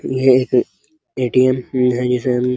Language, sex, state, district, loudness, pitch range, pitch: Hindi, male, Uttar Pradesh, Muzaffarnagar, -16 LUFS, 125-130 Hz, 125 Hz